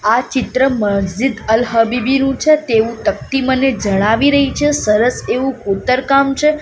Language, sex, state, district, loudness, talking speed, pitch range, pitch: Gujarati, female, Gujarat, Gandhinagar, -14 LUFS, 145 wpm, 225-270 Hz, 255 Hz